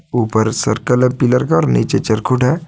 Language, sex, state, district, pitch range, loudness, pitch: Hindi, male, Jharkhand, Deoghar, 110-130 Hz, -15 LUFS, 125 Hz